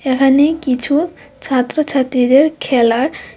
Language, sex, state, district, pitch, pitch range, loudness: Bengali, female, Tripura, West Tripura, 270 Hz, 255-300 Hz, -14 LUFS